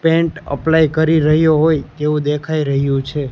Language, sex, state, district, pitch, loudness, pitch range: Gujarati, male, Gujarat, Gandhinagar, 155 Hz, -16 LUFS, 145-160 Hz